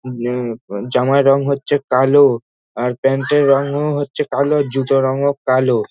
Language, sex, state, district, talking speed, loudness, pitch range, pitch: Bengali, male, West Bengal, North 24 Parganas, 150 wpm, -16 LUFS, 125-140 Hz, 135 Hz